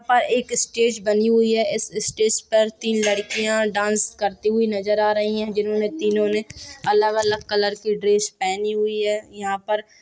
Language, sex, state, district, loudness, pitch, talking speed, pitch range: Hindi, female, Chhattisgarh, Rajnandgaon, -21 LUFS, 215 Hz, 180 wpm, 210-225 Hz